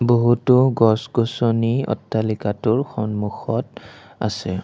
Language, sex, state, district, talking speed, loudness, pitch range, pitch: Assamese, male, Assam, Kamrup Metropolitan, 65 wpm, -20 LUFS, 110-120 Hz, 115 Hz